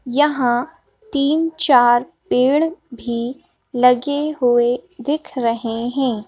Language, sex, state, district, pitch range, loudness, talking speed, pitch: Hindi, female, Madhya Pradesh, Bhopal, 240-295 Hz, -18 LUFS, 85 wpm, 250 Hz